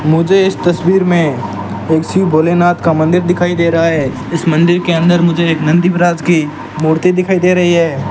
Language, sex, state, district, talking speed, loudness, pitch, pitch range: Hindi, male, Rajasthan, Bikaner, 200 wpm, -12 LUFS, 170 Hz, 160-175 Hz